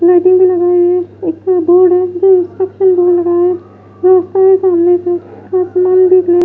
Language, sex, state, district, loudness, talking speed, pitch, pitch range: Hindi, female, Bihar, West Champaran, -11 LUFS, 175 wpm, 360 Hz, 355-370 Hz